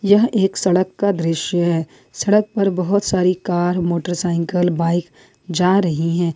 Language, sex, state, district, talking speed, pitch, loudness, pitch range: Hindi, female, Jharkhand, Ranchi, 150 wpm, 180 Hz, -18 LUFS, 170-195 Hz